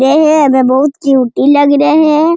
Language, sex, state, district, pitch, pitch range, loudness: Hindi, female, Bihar, Jamui, 285 Hz, 270-305 Hz, -9 LUFS